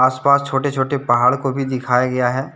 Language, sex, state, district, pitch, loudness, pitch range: Hindi, male, Jharkhand, Deoghar, 130 Hz, -17 LUFS, 125-135 Hz